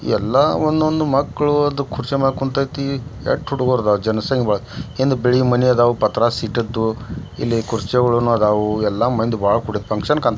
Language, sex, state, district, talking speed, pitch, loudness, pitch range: Kannada, male, Karnataka, Belgaum, 145 wpm, 120 Hz, -18 LUFS, 110-135 Hz